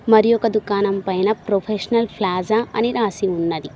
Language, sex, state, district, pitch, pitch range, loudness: Telugu, female, Telangana, Mahabubabad, 210 Hz, 190-225 Hz, -19 LUFS